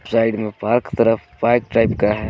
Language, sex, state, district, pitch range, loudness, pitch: Hindi, male, Jharkhand, Garhwa, 105-115 Hz, -18 LUFS, 115 Hz